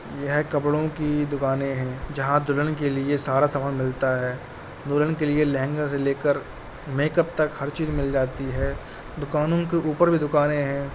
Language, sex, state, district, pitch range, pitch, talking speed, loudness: Hindi, male, Uttar Pradesh, Jalaun, 135-150 Hz, 145 Hz, 175 wpm, -24 LUFS